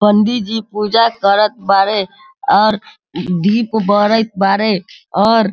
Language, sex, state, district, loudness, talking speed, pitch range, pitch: Hindi, male, Bihar, Sitamarhi, -14 LUFS, 120 wpm, 200-225 Hz, 210 Hz